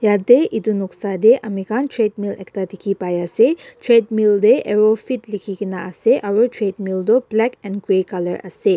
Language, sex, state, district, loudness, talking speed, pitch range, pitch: Nagamese, female, Nagaland, Dimapur, -18 LUFS, 145 wpm, 195-225 Hz, 205 Hz